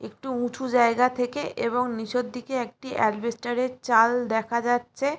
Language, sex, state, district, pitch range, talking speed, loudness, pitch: Bengali, female, West Bengal, Jalpaiguri, 235-255 Hz, 140 wpm, -25 LUFS, 245 Hz